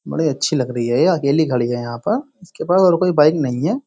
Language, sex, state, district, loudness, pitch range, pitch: Hindi, male, Uttar Pradesh, Jyotiba Phule Nagar, -17 LUFS, 130-180 Hz, 155 Hz